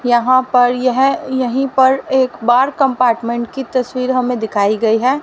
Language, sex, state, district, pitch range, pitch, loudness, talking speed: Hindi, female, Haryana, Rohtak, 240-260 Hz, 255 Hz, -15 LUFS, 160 wpm